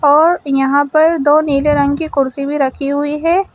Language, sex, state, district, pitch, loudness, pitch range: Hindi, female, Uttar Pradesh, Shamli, 290 Hz, -14 LUFS, 280-310 Hz